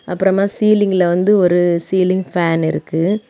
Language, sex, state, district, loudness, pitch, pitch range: Tamil, female, Tamil Nadu, Kanyakumari, -15 LUFS, 185 Hz, 175-200 Hz